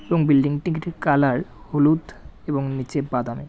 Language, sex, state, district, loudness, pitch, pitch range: Bengali, male, West Bengal, Jalpaiguri, -22 LUFS, 145 Hz, 135-155 Hz